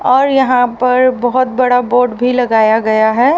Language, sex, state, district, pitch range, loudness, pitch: Hindi, female, Haryana, Rohtak, 240-255 Hz, -12 LUFS, 250 Hz